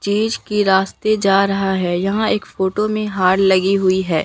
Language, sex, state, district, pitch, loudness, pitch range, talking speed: Hindi, female, Bihar, Katihar, 195 Hz, -17 LUFS, 190-210 Hz, 185 wpm